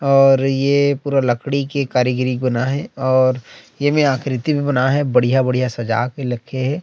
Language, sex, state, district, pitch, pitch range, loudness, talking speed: Chhattisgarhi, male, Chhattisgarh, Rajnandgaon, 130 Hz, 125-140 Hz, -17 LUFS, 175 wpm